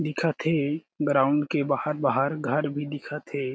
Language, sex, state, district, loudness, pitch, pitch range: Chhattisgarhi, male, Chhattisgarh, Jashpur, -26 LUFS, 145 Hz, 140-150 Hz